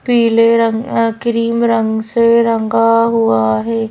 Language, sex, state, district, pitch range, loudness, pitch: Hindi, female, Madhya Pradesh, Bhopal, 225-230 Hz, -13 LUFS, 230 Hz